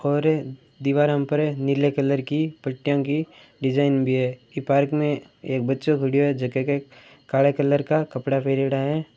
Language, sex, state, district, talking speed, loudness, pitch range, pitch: Marwari, male, Rajasthan, Churu, 150 wpm, -23 LUFS, 135-145 Hz, 140 Hz